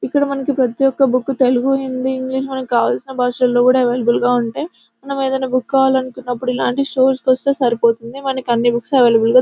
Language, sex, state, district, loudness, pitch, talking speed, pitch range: Telugu, female, Telangana, Nalgonda, -16 LUFS, 260 Hz, 190 wpm, 245-270 Hz